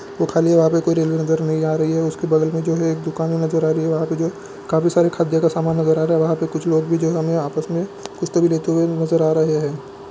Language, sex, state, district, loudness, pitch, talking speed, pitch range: Hindi, male, Bihar, Lakhisarai, -19 LUFS, 160 Hz, 315 wpm, 160-165 Hz